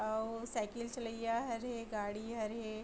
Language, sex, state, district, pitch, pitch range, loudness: Chhattisgarhi, female, Chhattisgarh, Bilaspur, 230 Hz, 215-230 Hz, -40 LUFS